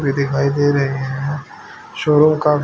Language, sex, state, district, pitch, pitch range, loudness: Hindi, male, Haryana, Charkhi Dadri, 140 Hz, 140-150 Hz, -17 LUFS